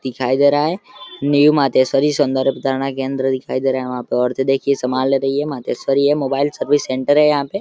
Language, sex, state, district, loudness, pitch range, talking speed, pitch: Hindi, male, Uttar Pradesh, Deoria, -17 LUFS, 130-145 Hz, 230 wpm, 135 Hz